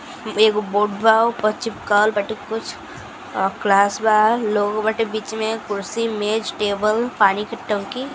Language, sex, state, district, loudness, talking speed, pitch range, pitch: Hindi, female, Uttar Pradesh, Gorakhpur, -19 LUFS, 140 wpm, 205-225 Hz, 215 Hz